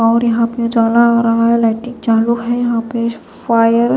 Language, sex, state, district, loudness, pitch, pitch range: Hindi, female, Maharashtra, Gondia, -14 LUFS, 235 Hz, 230-235 Hz